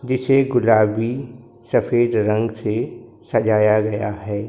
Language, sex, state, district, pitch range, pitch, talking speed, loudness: Hindi, male, Maharashtra, Gondia, 105-120 Hz, 110 Hz, 105 wpm, -19 LUFS